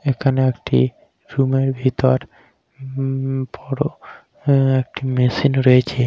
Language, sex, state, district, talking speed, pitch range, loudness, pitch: Bengali, male, West Bengal, Kolkata, 100 wpm, 130-135 Hz, -19 LUFS, 130 Hz